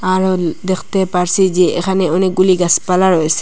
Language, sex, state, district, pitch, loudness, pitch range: Bengali, female, Assam, Hailakandi, 185 Hz, -14 LUFS, 180-190 Hz